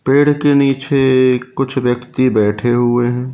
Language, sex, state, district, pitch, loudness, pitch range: Hindi, male, Madhya Pradesh, Katni, 130 Hz, -14 LUFS, 120-135 Hz